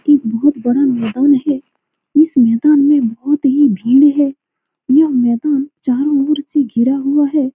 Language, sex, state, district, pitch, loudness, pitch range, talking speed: Hindi, female, Bihar, Saran, 280 Hz, -13 LUFS, 255-290 Hz, 160 wpm